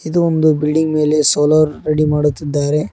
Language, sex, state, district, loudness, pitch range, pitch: Kannada, male, Karnataka, Koppal, -15 LUFS, 150-155 Hz, 150 Hz